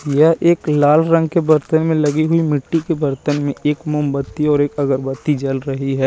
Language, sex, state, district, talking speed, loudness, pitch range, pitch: Hindi, male, Chandigarh, Chandigarh, 205 wpm, -16 LUFS, 140-160 Hz, 150 Hz